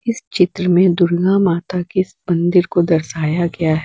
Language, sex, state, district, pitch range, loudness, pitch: Hindi, female, Bihar, West Champaran, 170-185 Hz, -16 LUFS, 175 Hz